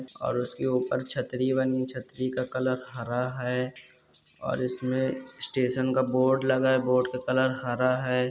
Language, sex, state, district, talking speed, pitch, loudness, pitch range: Hindi, male, Chhattisgarh, Korba, 165 wpm, 130 Hz, -28 LUFS, 125-130 Hz